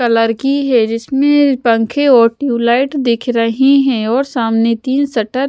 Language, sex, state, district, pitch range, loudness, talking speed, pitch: Hindi, female, Odisha, Sambalpur, 230-275 Hz, -13 LUFS, 165 wpm, 245 Hz